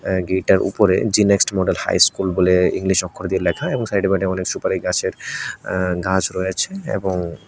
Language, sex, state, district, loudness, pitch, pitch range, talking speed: Bengali, male, Tripura, West Tripura, -19 LUFS, 95 Hz, 90-95 Hz, 190 wpm